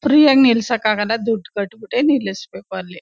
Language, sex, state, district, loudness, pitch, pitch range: Kannada, female, Karnataka, Chamarajanagar, -17 LUFS, 225 Hz, 195-255 Hz